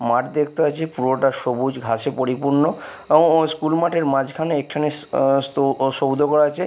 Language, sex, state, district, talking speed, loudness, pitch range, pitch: Bengali, male, Bihar, Katihar, 170 wpm, -20 LUFS, 135-155 Hz, 140 Hz